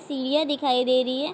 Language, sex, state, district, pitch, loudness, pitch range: Hindi, female, Bihar, Vaishali, 275 Hz, -23 LUFS, 255-295 Hz